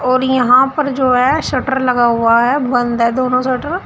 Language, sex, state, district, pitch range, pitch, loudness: Hindi, female, Uttar Pradesh, Shamli, 245-265 Hz, 255 Hz, -13 LUFS